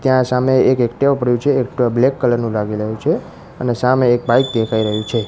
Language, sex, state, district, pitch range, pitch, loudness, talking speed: Gujarati, male, Gujarat, Gandhinagar, 115-130 Hz, 125 Hz, -16 LUFS, 225 wpm